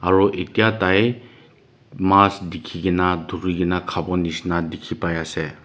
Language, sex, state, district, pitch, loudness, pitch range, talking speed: Nagamese, male, Nagaland, Dimapur, 90 Hz, -20 LUFS, 85-100 Hz, 105 wpm